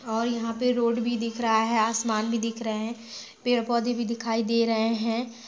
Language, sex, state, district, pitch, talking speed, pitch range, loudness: Hindi, female, Bihar, Gaya, 230 Hz, 220 wpm, 225-235 Hz, -26 LUFS